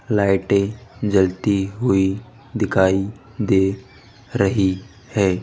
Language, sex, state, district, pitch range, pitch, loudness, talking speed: Hindi, male, Rajasthan, Jaipur, 95-110 Hz, 100 Hz, -20 LUFS, 75 wpm